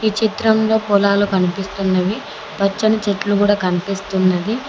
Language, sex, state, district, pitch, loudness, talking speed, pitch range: Telugu, female, Telangana, Mahabubabad, 205 Hz, -17 LUFS, 100 wpm, 195-220 Hz